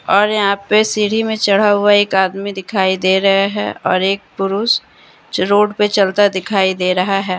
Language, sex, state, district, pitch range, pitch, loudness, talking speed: Hindi, female, Jharkhand, Deoghar, 190-210 Hz, 200 Hz, -15 LUFS, 195 wpm